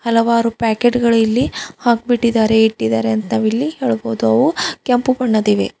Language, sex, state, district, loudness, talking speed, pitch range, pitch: Kannada, female, Karnataka, Bidar, -16 LUFS, 125 wpm, 215-240 Hz, 230 Hz